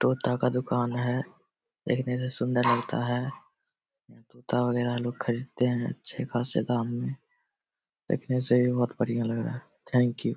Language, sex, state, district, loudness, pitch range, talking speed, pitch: Hindi, male, Bihar, Vaishali, -28 LUFS, 120-125 Hz, 175 wpm, 125 Hz